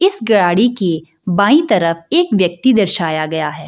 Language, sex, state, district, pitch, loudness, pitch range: Hindi, female, Bihar, Jahanabad, 185 Hz, -14 LUFS, 165-240 Hz